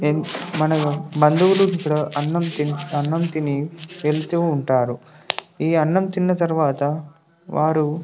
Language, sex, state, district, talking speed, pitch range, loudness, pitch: Telugu, male, Telangana, Nalgonda, 105 wpm, 150-170 Hz, -21 LUFS, 155 Hz